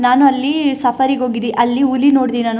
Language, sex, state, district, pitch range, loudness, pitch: Kannada, female, Karnataka, Chamarajanagar, 240-275 Hz, -14 LUFS, 260 Hz